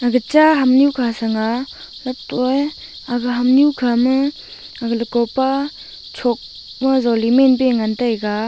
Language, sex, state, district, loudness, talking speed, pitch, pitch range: Wancho, female, Arunachal Pradesh, Longding, -17 LUFS, 105 wpm, 250 Hz, 235-265 Hz